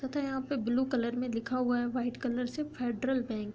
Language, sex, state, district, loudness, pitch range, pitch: Hindi, female, Uttar Pradesh, Budaun, -33 LUFS, 240-265 Hz, 250 Hz